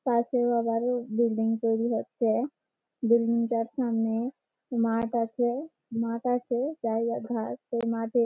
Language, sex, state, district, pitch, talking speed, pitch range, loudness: Bengali, female, West Bengal, Malda, 235 Hz, 125 wpm, 230-245 Hz, -28 LUFS